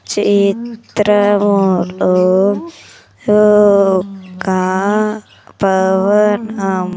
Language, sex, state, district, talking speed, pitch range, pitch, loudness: Telugu, female, Andhra Pradesh, Sri Satya Sai, 35 wpm, 190-210 Hz, 200 Hz, -13 LUFS